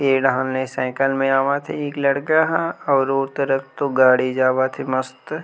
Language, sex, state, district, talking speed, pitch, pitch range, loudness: Chhattisgarhi, male, Chhattisgarh, Rajnandgaon, 210 wpm, 135 Hz, 130-140 Hz, -19 LUFS